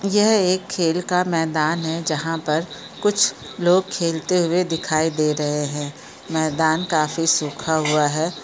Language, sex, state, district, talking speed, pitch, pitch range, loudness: Hindi, female, Chhattisgarh, Bilaspur, 150 wpm, 165 Hz, 155-180 Hz, -20 LUFS